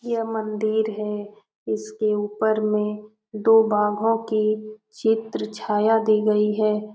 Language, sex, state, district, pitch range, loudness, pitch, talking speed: Hindi, female, Bihar, Jamui, 210-220 Hz, -22 LUFS, 215 Hz, 120 wpm